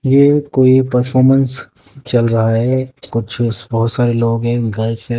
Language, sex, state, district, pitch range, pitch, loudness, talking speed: Hindi, male, Haryana, Jhajjar, 115-130 Hz, 120 Hz, -14 LUFS, 150 wpm